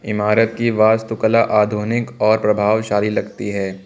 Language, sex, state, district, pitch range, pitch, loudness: Hindi, male, Uttar Pradesh, Lucknow, 105-115 Hz, 110 Hz, -17 LUFS